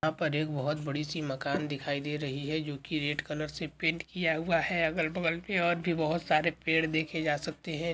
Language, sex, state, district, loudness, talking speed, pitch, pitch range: Hindi, male, Goa, North and South Goa, -31 LUFS, 240 wpm, 155 Hz, 150-165 Hz